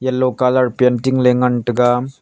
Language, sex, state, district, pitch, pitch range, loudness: Wancho, male, Arunachal Pradesh, Longding, 125 Hz, 125-130 Hz, -15 LUFS